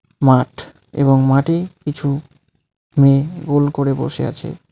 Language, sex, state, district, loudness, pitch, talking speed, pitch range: Bengali, male, West Bengal, Alipurduar, -17 LUFS, 140 Hz, 115 wpm, 135-150 Hz